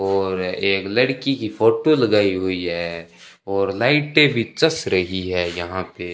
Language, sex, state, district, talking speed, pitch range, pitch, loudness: Hindi, male, Rajasthan, Bikaner, 165 wpm, 90-120 Hz, 100 Hz, -19 LUFS